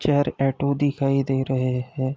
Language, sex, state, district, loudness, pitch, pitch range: Hindi, male, Uttar Pradesh, Deoria, -23 LUFS, 135 Hz, 130-140 Hz